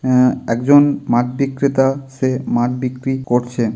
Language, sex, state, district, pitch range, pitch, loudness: Bengali, male, West Bengal, Kolkata, 120-135 Hz, 130 Hz, -16 LUFS